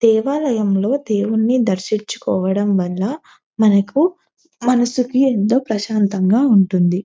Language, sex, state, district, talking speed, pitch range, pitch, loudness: Telugu, female, Telangana, Nalgonda, 75 wpm, 200-250 Hz, 220 Hz, -17 LUFS